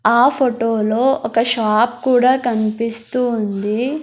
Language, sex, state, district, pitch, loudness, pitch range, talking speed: Telugu, female, Andhra Pradesh, Sri Satya Sai, 230 Hz, -17 LUFS, 220-250 Hz, 105 wpm